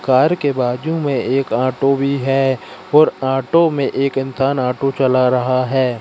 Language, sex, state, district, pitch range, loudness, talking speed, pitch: Hindi, male, Madhya Pradesh, Katni, 130-140 Hz, -16 LUFS, 170 wpm, 135 Hz